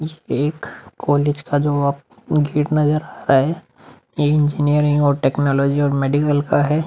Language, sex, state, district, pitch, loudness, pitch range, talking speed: Hindi, male, Uttar Pradesh, Muzaffarnagar, 145 Hz, -18 LUFS, 140-150 Hz, 165 wpm